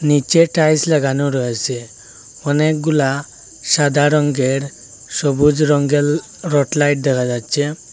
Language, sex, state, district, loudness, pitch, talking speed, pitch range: Bengali, male, Assam, Hailakandi, -16 LUFS, 145 Hz, 100 wpm, 130-150 Hz